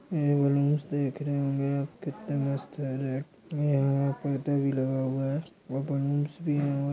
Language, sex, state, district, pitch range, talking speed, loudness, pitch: Hindi, male, Maharashtra, Dhule, 140-145 Hz, 165 wpm, -29 LUFS, 140 Hz